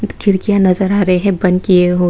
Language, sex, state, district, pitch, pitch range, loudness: Hindi, female, Tripura, West Tripura, 190 Hz, 180-200 Hz, -13 LUFS